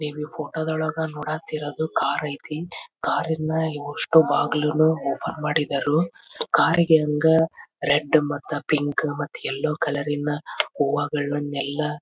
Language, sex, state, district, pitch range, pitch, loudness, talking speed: Kannada, male, Karnataka, Belgaum, 145-160 Hz, 150 Hz, -23 LUFS, 65 wpm